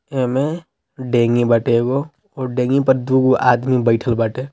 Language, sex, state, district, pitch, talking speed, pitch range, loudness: Hindi, male, Bihar, East Champaran, 130 Hz, 130 wpm, 120-135 Hz, -17 LUFS